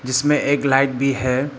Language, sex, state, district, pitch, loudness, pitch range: Hindi, male, Arunachal Pradesh, Papum Pare, 135 Hz, -18 LUFS, 130-140 Hz